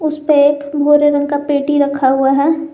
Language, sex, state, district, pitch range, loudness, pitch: Hindi, female, Jharkhand, Garhwa, 285-295 Hz, -13 LUFS, 290 Hz